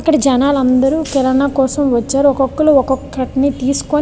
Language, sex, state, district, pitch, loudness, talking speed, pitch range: Telugu, female, Andhra Pradesh, Visakhapatnam, 270 Hz, -14 LUFS, 150 wpm, 265-285 Hz